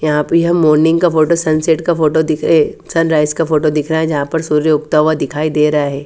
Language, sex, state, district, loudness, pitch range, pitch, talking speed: Hindi, female, Haryana, Charkhi Dadri, -13 LUFS, 150-165 Hz, 155 Hz, 260 wpm